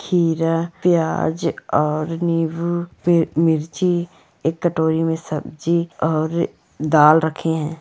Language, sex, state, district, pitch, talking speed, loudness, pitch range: Hindi, female, Bihar, Jamui, 165 Hz, 105 wpm, -19 LUFS, 160-170 Hz